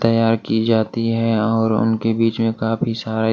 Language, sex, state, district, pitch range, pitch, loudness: Hindi, male, Maharashtra, Washim, 110-115 Hz, 115 Hz, -18 LUFS